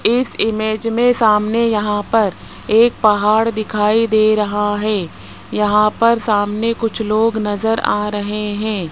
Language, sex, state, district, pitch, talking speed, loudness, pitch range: Hindi, male, Rajasthan, Jaipur, 215 Hz, 140 wpm, -16 LUFS, 210-225 Hz